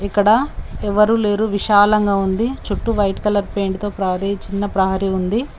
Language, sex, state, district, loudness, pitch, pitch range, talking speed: Telugu, female, Telangana, Mahabubabad, -18 LUFS, 205 Hz, 195-210 Hz, 150 wpm